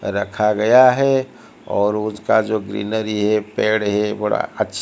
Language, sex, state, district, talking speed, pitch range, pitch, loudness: Hindi, male, Odisha, Malkangiri, 150 wpm, 105-110 Hz, 105 Hz, -18 LUFS